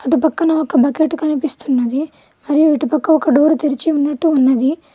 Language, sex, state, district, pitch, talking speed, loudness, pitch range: Telugu, female, Telangana, Mahabubabad, 300 Hz, 155 wpm, -15 LUFS, 280-315 Hz